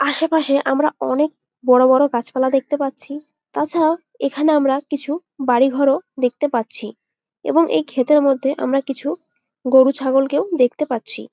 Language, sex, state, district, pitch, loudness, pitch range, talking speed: Bengali, female, West Bengal, Jalpaiguri, 275 Hz, -18 LUFS, 260-295 Hz, 140 wpm